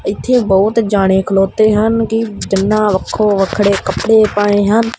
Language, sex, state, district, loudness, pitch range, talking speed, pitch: Punjabi, male, Punjab, Kapurthala, -13 LUFS, 195-220 Hz, 145 wpm, 210 Hz